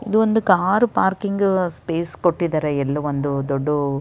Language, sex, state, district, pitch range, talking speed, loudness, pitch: Kannada, female, Karnataka, Raichur, 145-200 Hz, 150 wpm, -20 LUFS, 170 Hz